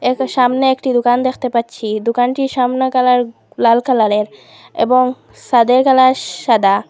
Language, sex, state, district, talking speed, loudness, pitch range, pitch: Bengali, female, Assam, Hailakandi, 130 wpm, -14 LUFS, 235-260 Hz, 250 Hz